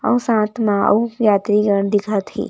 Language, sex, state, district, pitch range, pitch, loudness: Chhattisgarhi, female, Chhattisgarh, Raigarh, 205-225 Hz, 210 Hz, -17 LUFS